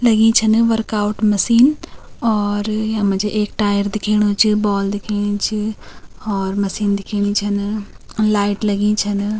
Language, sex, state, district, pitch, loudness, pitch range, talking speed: Garhwali, female, Uttarakhand, Tehri Garhwal, 210 Hz, -17 LUFS, 205-215 Hz, 135 wpm